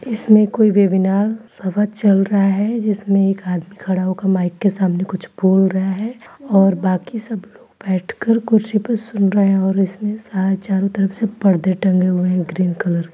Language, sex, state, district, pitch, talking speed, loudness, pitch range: Hindi, female, Bihar, Gopalganj, 195 Hz, 190 wpm, -17 LUFS, 190-215 Hz